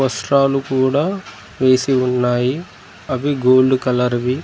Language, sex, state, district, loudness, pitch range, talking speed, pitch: Telugu, male, Telangana, Mahabubabad, -16 LUFS, 125-135 Hz, 120 wpm, 130 Hz